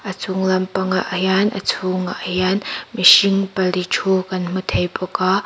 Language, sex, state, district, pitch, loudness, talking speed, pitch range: Mizo, female, Mizoram, Aizawl, 185 Hz, -18 LUFS, 165 wpm, 185-190 Hz